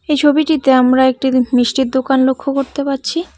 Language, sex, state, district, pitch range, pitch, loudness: Bengali, female, West Bengal, Cooch Behar, 260-285 Hz, 270 Hz, -14 LUFS